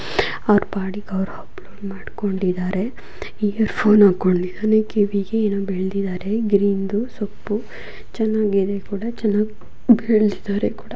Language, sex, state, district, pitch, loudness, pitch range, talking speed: Kannada, female, Karnataka, Dharwad, 205 Hz, -20 LUFS, 195-215 Hz, 75 wpm